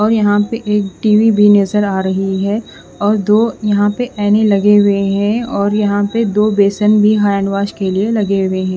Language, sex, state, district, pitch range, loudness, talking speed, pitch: Hindi, female, Odisha, Khordha, 200-215 Hz, -13 LUFS, 205 wpm, 205 Hz